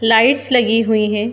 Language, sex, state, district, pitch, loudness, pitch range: Hindi, female, Uttar Pradesh, Muzaffarnagar, 225 Hz, -14 LUFS, 220-245 Hz